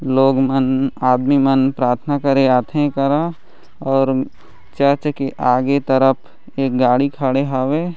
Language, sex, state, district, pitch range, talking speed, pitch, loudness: Chhattisgarhi, male, Chhattisgarh, Raigarh, 130-140 Hz, 145 wpm, 135 Hz, -17 LUFS